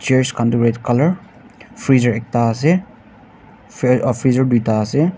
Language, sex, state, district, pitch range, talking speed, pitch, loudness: Nagamese, male, Nagaland, Dimapur, 120-150 Hz, 140 wpm, 125 Hz, -16 LUFS